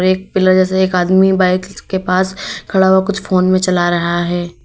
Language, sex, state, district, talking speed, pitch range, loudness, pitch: Hindi, female, Uttar Pradesh, Lalitpur, 205 wpm, 180-190 Hz, -14 LUFS, 185 Hz